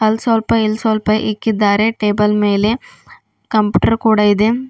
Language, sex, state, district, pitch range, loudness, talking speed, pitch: Kannada, female, Karnataka, Bidar, 210-225 Hz, -15 LUFS, 125 wpm, 215 Hz